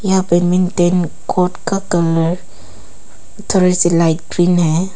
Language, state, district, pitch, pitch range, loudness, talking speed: Hindi, Arunachal Pradesh, Papum Pare, 175 Hz, 165-180 Hz, -15 LUFS, 135 wpm